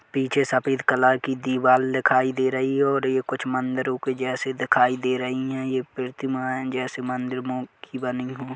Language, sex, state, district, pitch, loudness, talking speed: Hindi, male, Chhattisgarh, Kabirdham, 130 Hz, -24 LUFS, 195 wpm